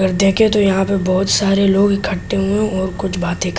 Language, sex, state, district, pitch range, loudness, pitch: Hindi, male, Delhi, New Delhi, 190-200 Hz, -16 LUFS, 195 Hz